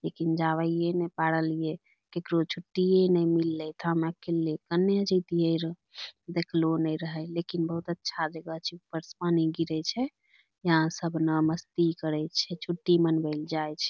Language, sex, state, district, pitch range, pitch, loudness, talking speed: Angika, female, Bihar, Bhagalpur, 160-170 Hz, 165 Hz, -29 LUFS, 170 wpm